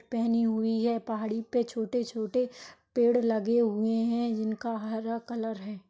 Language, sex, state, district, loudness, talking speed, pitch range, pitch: Hindi, female, Maharashtra, Solapur, -29 LUFS, 155 wpm, 220-235 Hz, 230 Hz